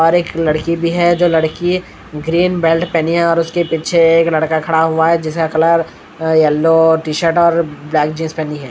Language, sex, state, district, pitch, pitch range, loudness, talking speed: Hindi, male, Bihar, Katihar, 165 Hz, 160-170 Hz, -14 LUFS, 200 wpm